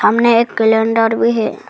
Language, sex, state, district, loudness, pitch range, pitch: Hindi, female, Arunachal Pradesh, Lower Dibang Valley, -13 LUFS, 225-235 Hz, 225 Hz